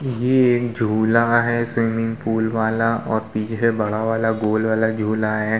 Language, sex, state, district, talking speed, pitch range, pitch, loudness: Hindi, male, Uttar Pradesh, Muzaffarnagar, 160 wpm, 110-115 Hz, 115 Hz, -20 LUFS